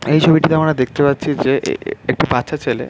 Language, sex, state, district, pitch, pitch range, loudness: Bengali, male, West Bengal, Dakshin Dinajpur, 155 Hz, 145-175 Hz, -16 LUFS